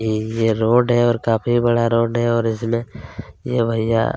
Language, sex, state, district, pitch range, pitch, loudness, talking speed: Hindi, male, Chhattisgarh, Kabirdham, 115-120 Hz, 115 Hz, -18 LUFS, 185 wpm